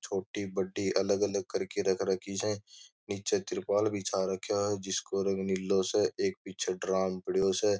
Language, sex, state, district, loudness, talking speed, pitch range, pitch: Marwari, male, Rajasthan, Churu, -32 LUFS, 175 wpm, 95-100 Hz, 100 Hz